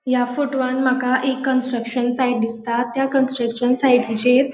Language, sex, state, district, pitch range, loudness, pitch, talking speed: Konkani, female, Goa, North and South Goa, 245-265 Hz, -19 LUFS, 255 Hz, 145 wpm